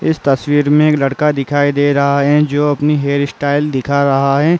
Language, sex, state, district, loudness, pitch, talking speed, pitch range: Hindi, male, Uttar Pradesh, Muzaffarnagar, -13 LUFS, 145 Hz, 195 wpm, 140-150 Hz